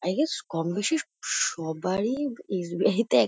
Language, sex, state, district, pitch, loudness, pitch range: Bengali, female, West Bengal, Kolkata, 190 Hz, -27 LUFS, 165-250 Hz